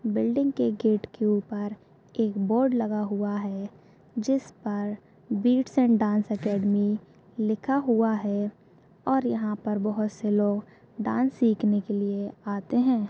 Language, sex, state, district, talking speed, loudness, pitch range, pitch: Hindi, female, Chhattisgarh, Bastar, 140 wpm, -26 LUFS, 205-230 Hz, 210 Hz